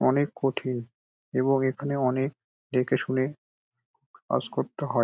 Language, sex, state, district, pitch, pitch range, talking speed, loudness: Bengali, male, West Bengal, Dakshin Dinajpur, 130 Hz, 125-135 Hz, 120 wpm, -28 LUFS